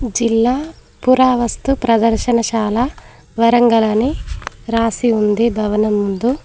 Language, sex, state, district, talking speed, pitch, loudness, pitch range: Telugu, female, Telangana, Mahabubabad, 85 wpm, 230 Hz, -15 LUFS, 225-245 Hz